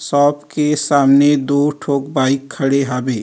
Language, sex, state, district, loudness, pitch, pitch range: Chhattisgarhi, male, Chhattisgarh, Rajnandgaon, -15 LUFS, 140 Hz, 135-145 Hz